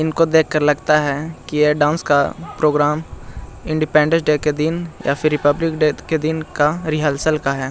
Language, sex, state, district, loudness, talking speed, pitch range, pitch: Hindi, male, Bihar, Jahanabad, -18 LUFS, 185 wpm, 145-160 Hz, 150 Hz